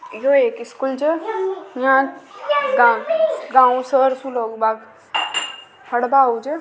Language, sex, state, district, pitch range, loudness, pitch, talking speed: Rajasthani, female, Rajasthan, Nagaur, 245-300 Hz, -18 LUFS, 265 Hz, 90 wpm